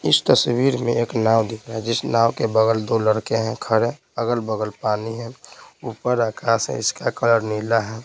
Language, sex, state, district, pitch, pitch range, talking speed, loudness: Hindi, male, Bihar, Patna, 115 Hz, 110-115 Hz, 195 wpm, -21 LUFS